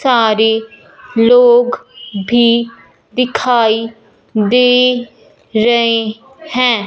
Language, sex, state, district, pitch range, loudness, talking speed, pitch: Hindi, male, Punjab, Fazilka, 220-245 Hz, -12 LUFS, 60 wpm, 235 Hz